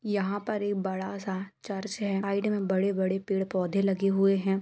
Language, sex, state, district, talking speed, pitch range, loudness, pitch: Hindi, female, Chhattisgarh, Jashpur, 195 wpm, 190-200 Hz, -29 LUFS, 195 Hz